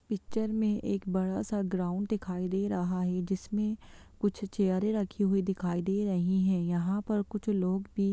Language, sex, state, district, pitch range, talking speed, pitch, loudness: Hindi, female, Bihar, Jahanabad, 185-210 Hz, 170 wpm, 195 Hz, -31 LUFS